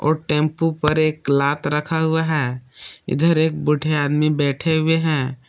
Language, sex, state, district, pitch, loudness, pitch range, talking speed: Hindi, male, Jharkhand, Palamu, 150 Hz, -19 LUFS, 145-160 Hz, 155 wpm